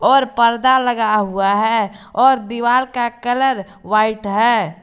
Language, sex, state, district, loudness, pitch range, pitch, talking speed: Hindi, female, Jharkhand, Garhwa, -16 LUFS, 210-245 Hz, 230 Hz, 135 wpm